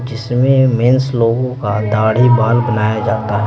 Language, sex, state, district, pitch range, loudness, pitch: Hindi, male, Bihar, Patna, 110-125 Hz, -14 LUFS, 120 Hz